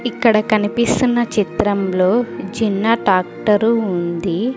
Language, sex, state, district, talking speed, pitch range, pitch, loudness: Telugu, female, Andhra Pradesh, Sri Satya Sai, 80 wpm, 190-235 Hz, 215 Hz, -17 LUFS